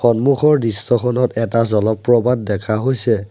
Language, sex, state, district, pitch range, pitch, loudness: Assamese, male, Assam, Sonitpur, 110-125 Hz, 115 Hz, -16 LUFS